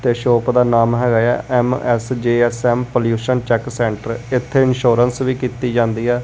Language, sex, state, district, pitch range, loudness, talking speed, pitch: Punjabi, male, Punjab, Kapurthala, 120-125 Hz, -17 LUFS, 195 wpm, 120 Hz